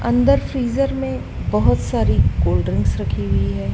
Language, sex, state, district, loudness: Hindi, female, Madhya Pradesh, Dhar, -19 LUFS